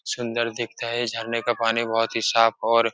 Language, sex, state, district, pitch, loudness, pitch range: Hindi, male, Uttar Pradesh, Etah, 115 Hz, -23 LUFS, 115-120 Hz